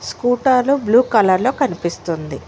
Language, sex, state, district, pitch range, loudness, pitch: Telugu, female, Telangana, Mahabubabad, 175-260 Hz, -16 LUFS, 240 Hz